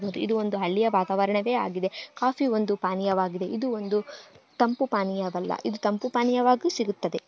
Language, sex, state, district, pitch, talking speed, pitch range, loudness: Kannada, female, Karnataka, Gulbarga, 210 Hz, 130 wpm, 195-245 Hz, -26 LUFS